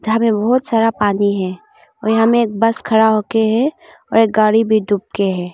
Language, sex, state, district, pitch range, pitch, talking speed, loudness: Hindi, female, Arunachal Pradesh, Longding, 205-230 Hz, 220 Hz, 205 wpm, -15 LUFS